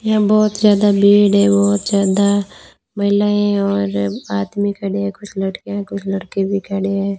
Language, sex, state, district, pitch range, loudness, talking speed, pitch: Hindi, female, Rajasthan, Bikaner, 195-205 Hz, -16 LUFS, 160 wpm, 200 Hz